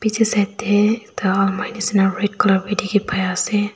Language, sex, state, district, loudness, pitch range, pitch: Nagamese, female, Nagaland, Dimapur, -19 LUFS, 195-215 Hz, 205 Hz